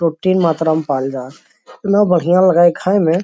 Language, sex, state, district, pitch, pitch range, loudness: Magahi, male, Bihar, Lakhisarai, 170 Hz, 160-185 Hz, -14 LUFS